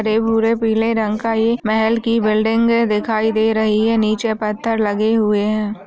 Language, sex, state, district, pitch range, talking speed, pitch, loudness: Hindi, female, Chhattisgarh, Sarguja, 215-225 Hz, 185 wpm, 220 Hz, -17 LUFS